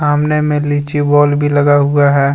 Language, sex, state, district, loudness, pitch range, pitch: Hindi, male, Jharkhand, Deoghar, -12 LUFS, 145-150 Hz, 145 Hz